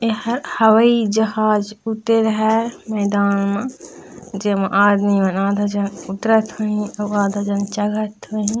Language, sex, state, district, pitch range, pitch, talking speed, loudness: Chhattisgarhi, female, Chhattisgarh, Raigarh, 200-220 Hz, 210 Hz, 130 wpm, -18 LUFS